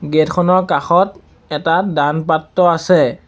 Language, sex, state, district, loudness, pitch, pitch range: Assamese, male, Assam, Sonitpur, -15 LUFS, 165 Hz, 155-180 Hz